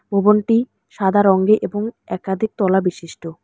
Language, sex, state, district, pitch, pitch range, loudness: Bengali, female, West Bengal, Alipurduar, 200 Hz, 190-215 Hz, -18 LUFS